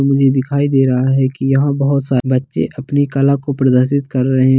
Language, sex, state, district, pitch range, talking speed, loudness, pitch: Hindi, male, Bihar, Darbhanga, 130-140 Hz, 210 wpm, -15 LUFS, 135 Hz